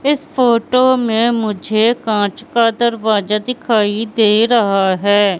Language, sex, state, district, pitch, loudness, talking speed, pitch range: Hindi, female, Madhya Pradesh, Katni, 225 Hz, -14 LUFS, 120 wpm, 210-240 Hz